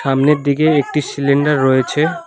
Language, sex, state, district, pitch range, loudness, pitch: Bengali, male, West Bengal, Alipurduar, 140-150 Hz, -15 LUFS, 145 Hz